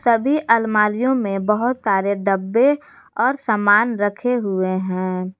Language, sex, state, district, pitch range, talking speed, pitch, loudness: Hindi, female, Jharkhand, Garhwa, 195-245 Hz, 120 wpm, 210 Hz, -19 LUFS